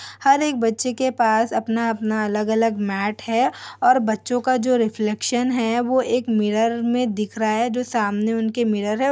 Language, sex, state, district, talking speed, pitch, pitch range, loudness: Hindi, female, Chhattisgarh, Korba, 185 wpm, 230 Hz, 215-250 Hz, -21 LUFS